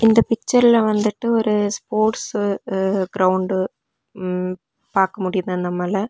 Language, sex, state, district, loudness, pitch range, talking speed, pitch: Tamil, female, Tamil Nadu, Nilgiris, -20 LUFS, 185-220 Hz, 100 wpm, 200 Hz